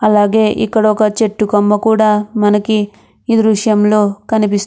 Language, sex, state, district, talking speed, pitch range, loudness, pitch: Telugu, female, Andhra Pradesh, Krishna, 140 wpm, 210-220 Hz, -13 LUFS, 215 Hz